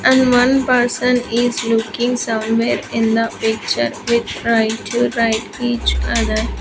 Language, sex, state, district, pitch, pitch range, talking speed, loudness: English, female, Andhra Pradesh, Sri Satya Sai, 230 Hz, 225-245 Hz, 135 wpm, -17 LUFS